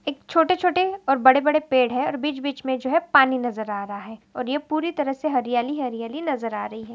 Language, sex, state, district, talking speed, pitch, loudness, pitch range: Hindi, female, Maharashtra, Aurangabad, 235 wpm, 270 Hz, -22 LUFS, 245-300 Hz